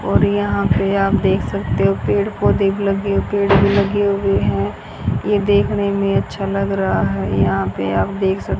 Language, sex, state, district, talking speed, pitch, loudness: Hindi, female, Haryana, Rohtak, 210 wpm, 195 Hz, -17 LUFS